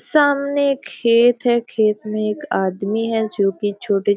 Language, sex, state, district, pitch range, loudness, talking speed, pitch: Hindi, female, Bihar, Gopalganj, 205-245 Hz, -18 LUFS, 170 wpm, 220 Hz